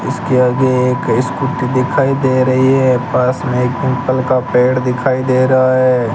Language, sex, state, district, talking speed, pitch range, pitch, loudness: Hindi, male, Rajasthan, Bikaner, 165 wpm, 125-130 Hz, 130 Hz, -13 LUFS